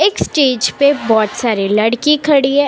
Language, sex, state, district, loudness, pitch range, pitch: Hindi, female, Maharashtra, Mumbai Suburban, -13 LUFS, 220-285 Hz, 250 Hz